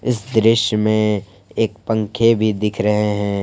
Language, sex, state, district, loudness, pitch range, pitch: Hindi, male, Jharkhand, Palamu, -18 LUFS, 105-115 Hz, 105 Hz